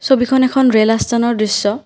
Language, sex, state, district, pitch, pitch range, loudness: Assamese, female, Assam, Kamrup Metropolitan, 235 Hz, 220-260 Hz, -14 LUFS